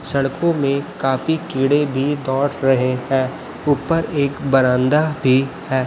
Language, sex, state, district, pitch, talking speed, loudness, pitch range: Hindi, male, Chhattisgarh, Raipur, 135 Hz, 135 wpm, -18 LUFS, 130-145 Hz